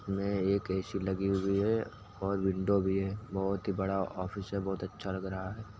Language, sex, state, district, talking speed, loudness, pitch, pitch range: Hindi, male, Uttar Pradesh, Muzaffarnagar, 195 wpm, -33 LUFS, 95 Hz, 95-100 Hz